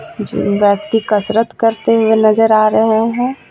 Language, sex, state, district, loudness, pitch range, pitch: Hindi, female, Jharkhand, Ranchi, -13 LUFS, 215-225 Hz, 220 Hz